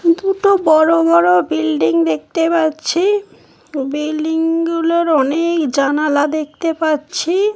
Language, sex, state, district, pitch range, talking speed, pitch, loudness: Bengali, female, West Bengal, Paschim Medinipur, 285-335 Hz, 95 wpm, 315 Hz, -15 LUFS